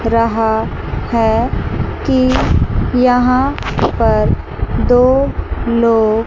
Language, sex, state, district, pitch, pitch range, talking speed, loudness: Hindi, female, Chandigarh, Chandigarh, 235 Hz, 225-250 Hz, 65 wpm, -14 LUFS